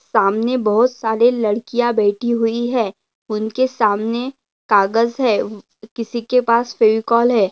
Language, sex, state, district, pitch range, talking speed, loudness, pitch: Hindi, female, Maharashtra, Pune, 215-240 Hz, 135 wpm, -17 LUFS, 230 Hz